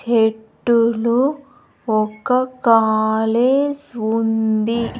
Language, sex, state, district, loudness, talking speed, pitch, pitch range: Telugu, female, Andhra Pradesh, Sri Satya Sai, -18 LUFS, 50 wpm, 230 Hz, 220-255 Hz